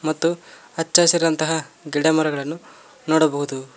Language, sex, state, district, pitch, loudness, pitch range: Kannada, male, Karnataka, Koppal, 155 Hz, -19 LUFS, 150-165 Hz